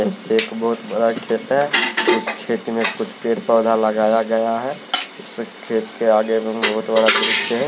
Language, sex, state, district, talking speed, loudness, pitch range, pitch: Hindi, male, Maharashtra, Mumbai Suburban, 180 wpm, -18 LUFS, 110-115 Hz, 115 Hz